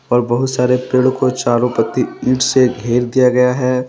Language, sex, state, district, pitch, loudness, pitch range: Hindi, male, Jharkhand, Deoghar, 125 Hz, -15 LUFS, 125-130 Hz